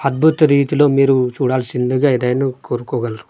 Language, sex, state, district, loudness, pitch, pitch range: Telugu, male, Andhra Pradesh, Manyam, -16 LUFS, 130 Hz, 125-140 Hz